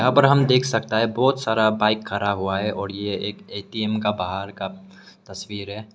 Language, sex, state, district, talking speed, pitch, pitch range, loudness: Hindi, male, Meghalaya, West Garo Hills, 210 wpm, 105 Hz, 100-110 Hz, -22 LUFS